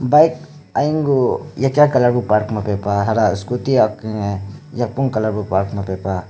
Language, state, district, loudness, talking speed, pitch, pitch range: Nyishi, Arunachal Pradesh, Papum Pare, -18 LUFS, 160 wpm, 110 Hz, 100-135 Hz